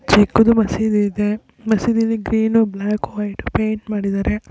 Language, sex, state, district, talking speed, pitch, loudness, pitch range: Kannada, female, Karnataka, Raichur, 120 wpm, 215 Hz, -18 LUFS, 205-225 Hz